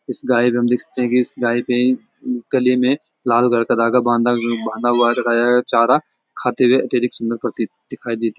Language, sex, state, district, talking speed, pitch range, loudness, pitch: Hindi, male, Uttarakhand, Uttarkashi, 230 wpm, 120-125 Hz, -18 LUFS, 120 Hz